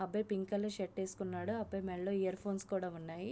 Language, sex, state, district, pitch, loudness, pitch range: Telugu, female, Andhra Pradesh, Visakhapatnam, 195 Hz, -39 LUFS, 185-205 Hz